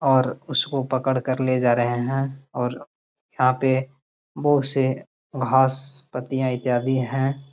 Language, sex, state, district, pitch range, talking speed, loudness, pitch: Hindi, male, Bihar, Gaya, 130-135 Hz, 135 wpm, -21 LUFS, 130 Hz